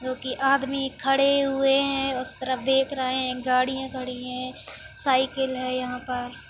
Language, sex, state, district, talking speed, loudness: Kumaoni, female, Uttarakhand, Tehri Garhwal, 165 wpm, -25 LUFS